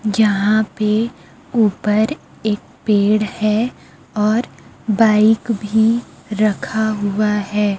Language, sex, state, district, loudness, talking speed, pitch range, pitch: Hindi, female, Chhattisgarh, Raipur, -17 LUFS, 90 wpm, 210-220 Hz, 215 Hz